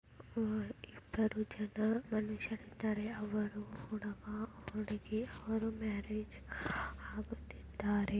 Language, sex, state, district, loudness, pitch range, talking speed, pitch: Kannada, female, Karnataka, Belgaum, -40 LUFS, 210-220 Hz, 80 wpm, 215 Hz